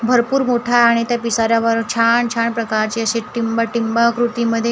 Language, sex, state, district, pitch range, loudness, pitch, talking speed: Marathi, female, Maharashtra, Gondia, 230-240 Hz, -17 LUFS, 235 Hz, 125 wpm